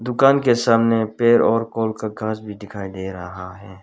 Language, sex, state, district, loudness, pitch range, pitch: Hindi, male, Arunachal Pradesh, Lower Dibang Valley, -19 LUFS, 100-115 Hz, 110 Hz